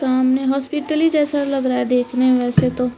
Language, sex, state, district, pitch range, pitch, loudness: Hindi, female, Uttarakhand, Tehri Garhwal, 250-285 Hz, 255 Hz, -18 LUFS